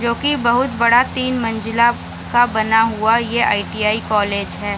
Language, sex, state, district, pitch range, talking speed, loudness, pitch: Hindi, female, Bihar, Samastipur, 215-240 Hz, 190 wpm, -16 LUFS, 225 Hz